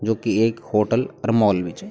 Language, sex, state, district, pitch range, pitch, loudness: Garhwali, male, Uttarakhand, Tehri Garhwal, 105-115 Hz, 110 Hz, -21 LUFS